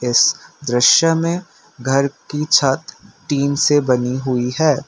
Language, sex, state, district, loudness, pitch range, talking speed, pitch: Hindi, male, Assam, Kamrup Metropolitan, -16 LUFS, 130-155 Hz, 135 wpm, 140 Hz